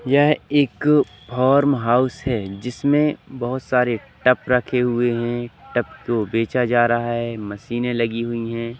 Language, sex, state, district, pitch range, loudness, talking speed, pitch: Hindi, male, Madhya Pradesh, Katni, 115-130 Hz, -20 LUFS, 150 wpm, 120 Hz